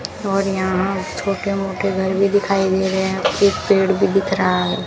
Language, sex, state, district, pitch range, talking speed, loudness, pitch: Hindi, female, Rajasthan, Bikaner, 190-195 Hz, 195 wpm, -18 LUFS, 195 Hz